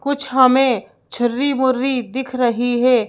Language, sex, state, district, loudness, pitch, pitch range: Hindi, female, Madhya Pradesh, Bhopal, -17 LUFS, 255 Hz, 245-265 Hz